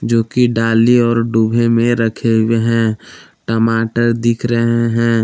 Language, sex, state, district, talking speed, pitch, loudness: Hindi, male, Jharkhand, Palamu, 150 wpm, 115 Hz, -14 LUFS